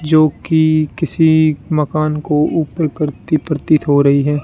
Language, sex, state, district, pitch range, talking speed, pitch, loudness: Hindi, male, Rajasthan, Bikaner, 150-160 Hz, 135 wpm, 155 Hz, -15 LUFS